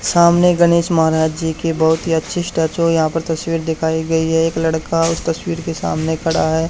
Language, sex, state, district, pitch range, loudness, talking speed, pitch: Hindi, male, Haryana, Charkhi Dadri, 160-165 Hz, -16 LUFS, 205 wpm, 165 Hz